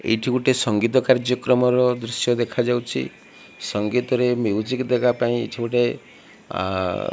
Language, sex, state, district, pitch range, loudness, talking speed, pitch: Odia, male, Odisha, Malkangiri, 115-125 Hz, -21 LUFS, 90 wpm, 120 Hz